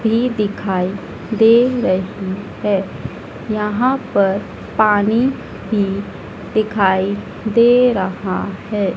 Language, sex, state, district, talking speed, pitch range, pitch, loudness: Hindi, female, Madhya Pradesh, Dhar, 85 wpm, 195-230 Hz, 210 Hz, -17 LUFS